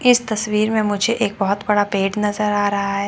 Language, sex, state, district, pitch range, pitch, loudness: Hindi, female, Chandigarh, Chandigarh, 200-215 Hz, 210 Hz, -19 LUFS